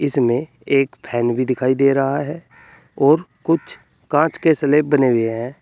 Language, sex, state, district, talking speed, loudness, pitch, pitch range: Hindi, male, Uttar Pradesh, Saharanpur, 170 wpm, -18 LUFS, 135 Hz, 125-150 Hz